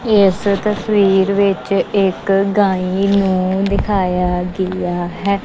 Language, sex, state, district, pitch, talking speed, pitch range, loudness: Punjabi, female, Punjab, Kapurthala, 195 Hz, 100 wpm, 185-200 Hz, -16 LUFS